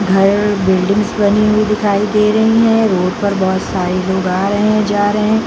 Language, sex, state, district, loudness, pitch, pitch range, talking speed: Hindi, female, Bihar, Jamui, -13 LUFS, 205 Hz, 190-215 Hz, 220 wpm